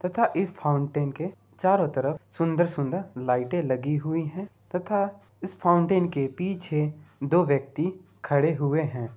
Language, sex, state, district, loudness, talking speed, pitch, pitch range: Hindi, male, Bihar, Gopalganj, -26 LUFS, 145 wpm, 160 Hz, 140-180 Hz